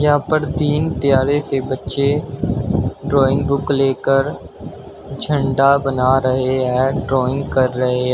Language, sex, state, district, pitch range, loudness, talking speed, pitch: Hindi, male, Uttar Pradesh, Shamli, 130-140 Hz, -17 LUFS, 120 wpm, 135 Hz